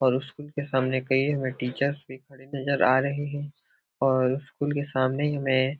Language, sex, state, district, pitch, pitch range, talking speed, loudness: Hindi, male, Bihar, Supaul, 135 Hz, 130-145 Hz, 195 wpm, -26 LUFS